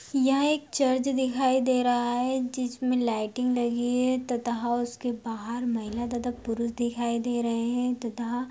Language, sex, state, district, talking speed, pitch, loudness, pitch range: Hindi, female, Bihar, Sitamarhi, 160 wpm, 245 Hz, -27 LUFS, 235-255 Hz